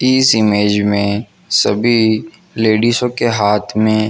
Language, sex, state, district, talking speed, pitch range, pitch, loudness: Hindi, male, Jharkhand, Jamtara, 115 wpm, 105-120 Hz, 110 Hz, -14 LUFS